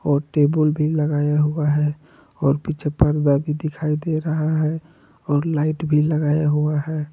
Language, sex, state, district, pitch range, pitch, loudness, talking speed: Hindi, male, Jharkhand, Palamu, 150-155 Hz, 150 Hz, -20 LUFS, 170 wpm